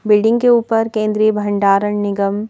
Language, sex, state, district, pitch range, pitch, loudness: Hindi, female, Madhya Pradesh, Bhopal, 205-225 Hz, 215 Hz, -15 LUFS